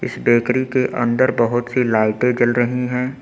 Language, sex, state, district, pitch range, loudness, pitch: Hindi, male, Uttar Pradesh, Lucknow, 120-125 Hz, -18 LUFS, 125 Hz